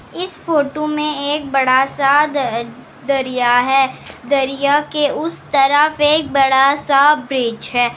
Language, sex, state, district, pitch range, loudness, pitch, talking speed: Hindi, female, Bihar, Kishanganj, 265-295 Hz, -15 LUFS, 280 Hz, 135 wpm